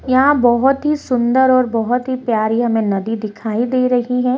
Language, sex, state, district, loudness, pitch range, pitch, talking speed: Hindi, female, Bihar, Purnia, -16 LUFS, 225-255 Hz, 245 Hz, 205 wpm